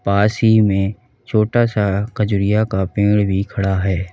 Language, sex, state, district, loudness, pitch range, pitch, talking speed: Hindi, male, Uttar Pradesh, Lalitpur, -17 LUFS, 95-110 Hz, 105 Hz, 160 wpm